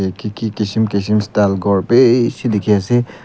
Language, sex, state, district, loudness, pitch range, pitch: Nagamese, male, Nagaland, Kohima, -15 LUFS, 100-120 Hz, 105 Hz